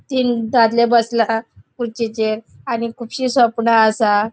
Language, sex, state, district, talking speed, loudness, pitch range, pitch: Konkani, female, Goa, North and South Goa, 110 wpm, -17 LUFS, 225-235 Hz, 230 Hz